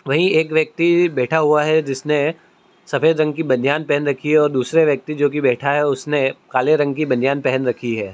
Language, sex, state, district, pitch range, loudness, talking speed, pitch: Hindi, female, Uttar Pradesh, Muzaffarnagar, 135-155 Hz, -18 LUFS, 205 wpm, 150 Hz